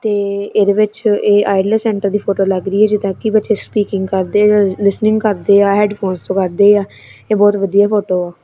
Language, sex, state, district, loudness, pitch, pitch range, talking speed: Punjabi, female, Punjab, Kapurthala, -14 LUFS, 205 Hz, 195-210 Hz, 205 wpm